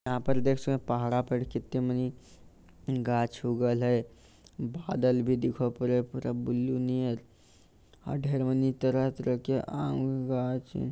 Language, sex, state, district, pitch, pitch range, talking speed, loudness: Maithili, male, Bihar, Lakhisarai, 125 Hz, 120-130 Hz, 110 wpm, -30 LUFS